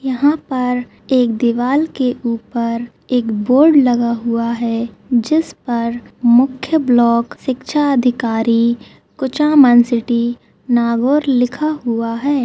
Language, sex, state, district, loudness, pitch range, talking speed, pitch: Hindi, female, Rajasthan, Nagaur, -15 LUFS, 235-265 Hz, 110 wpm, 245 Hz